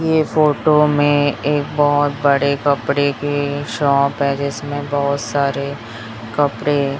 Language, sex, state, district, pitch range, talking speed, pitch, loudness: Hindi, male, Chhattisgarh, Raipur, 140-145 Hz, 120 wpm, 145 Hz, -17 LUFS